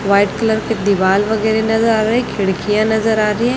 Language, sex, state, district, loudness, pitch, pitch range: Hindi, male, Chhattisgarh, Raipur, -15 LUFS, 220 Hz, 200-225 Hz